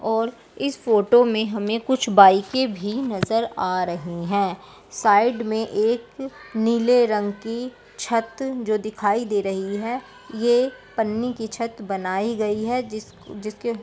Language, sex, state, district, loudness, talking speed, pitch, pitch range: Hindi, female, Uttar Pradesh, Deoria, -22 LUFS, 145 wpm, 225 Hz, 205-240 Hz